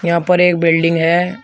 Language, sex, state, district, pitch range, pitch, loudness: Hindi, male, Uttar Pradesh, Shamli, 165-180 Hz, 170 Hz, -13 LUFS